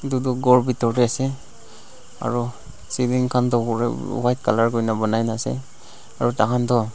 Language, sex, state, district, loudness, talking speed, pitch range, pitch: Nagamese, male, Nagaland, Dimapur, -21 LUFS, 155 wpm, 115-125 Hz, 120 Hz